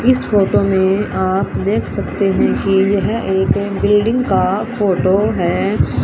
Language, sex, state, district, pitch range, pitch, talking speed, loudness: Hindi, female, Haryana, Rohtak, 190-205 Hz, 195 Hz, 140 wpm, -15 LUFS